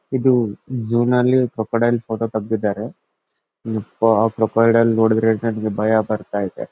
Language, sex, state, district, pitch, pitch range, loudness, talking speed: Kannada, male, Karnataka, Bellary, 115 Hz, 110-115 Hz, -19 LUFS, 105 wpm